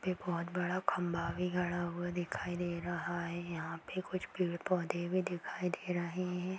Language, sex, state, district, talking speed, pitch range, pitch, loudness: Hindi, female, Uttar Pradesh, Budaun, 190 wpm, 175-180 Hz, 175 Hz, -37 LUFS